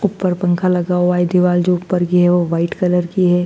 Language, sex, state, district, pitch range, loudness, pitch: Hindi, female, Madhya Pradesh, Dhar, 175-180 Hz, -16 LUFS, 180 Hz